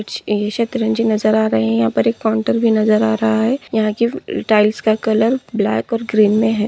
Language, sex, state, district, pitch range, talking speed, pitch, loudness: Hindi, female, Maharashtra, Solapur, 215-225 Hz, 225 wpm, 220 Hz, -16 LUFS